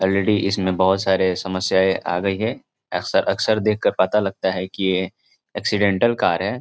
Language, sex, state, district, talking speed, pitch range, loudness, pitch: Hindi, male, Bihar, Gopalganj, 180 wpm, 95-105 Hz, -20 LUFS, 95 Hz